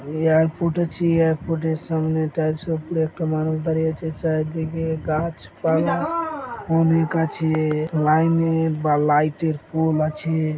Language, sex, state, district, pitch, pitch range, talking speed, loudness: Bengali, male, West Bengal, Malda, 160 Hz, 155-165 Hz, 115 wpm, -22 LUFS